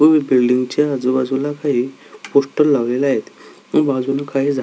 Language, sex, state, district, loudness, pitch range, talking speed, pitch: Marathi, male, Maharashtra, Solapur, -17 LUFS, 130-145 Hz, 170 wpm, 135 Hz